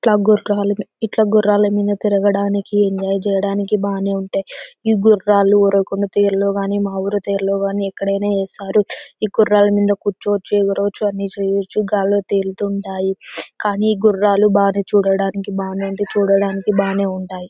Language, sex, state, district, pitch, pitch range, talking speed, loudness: Telugu, female, Andhra Pradesh, Anantapur, 200 Hz, 195-205 Hz, 125 wpm, -17 LUFS